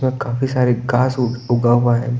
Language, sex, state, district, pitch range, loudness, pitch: Hindi, male, Himachal Pradesh, Shimla, 120-130 Hz, -17 LUFS, 125 Hz